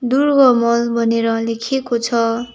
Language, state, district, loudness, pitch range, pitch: Nepali, West Bengal, Darjeeling, -16 LUFS, 230-250 Hz, 235 Hz